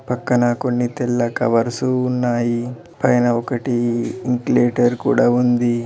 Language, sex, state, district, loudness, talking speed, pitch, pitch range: Telugu, male, Telangana, Mahabubabad, -18 LUFS, 100 wpm, 120 Hz, 120-125 Hz